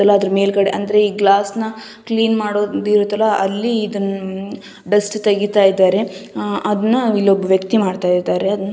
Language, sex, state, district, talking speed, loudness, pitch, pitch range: Kannada, female, Karnataka, Gulbarga, 150 wpm, -16 LUFS, 205 Hz, 195-210 Hz